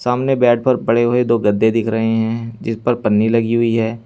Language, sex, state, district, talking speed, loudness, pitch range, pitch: Hindi, male, Uttar Pradesh, Saharanpur, 235 wpm, -16 LUFS, 110-120 Hz, 115 Hz